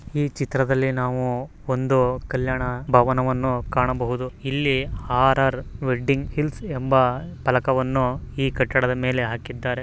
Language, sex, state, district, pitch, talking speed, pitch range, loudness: Kannada, male, Karnataka, Mysore, 130 Hz, 115 wpm, 125-135 Hz, -22 LUFS